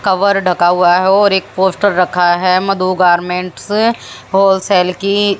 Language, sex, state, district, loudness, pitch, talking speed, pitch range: Hindi, female, Haryana, Jhajjar, -12 LUFS, 185 Hz, 145 wpm, 180-195 Hz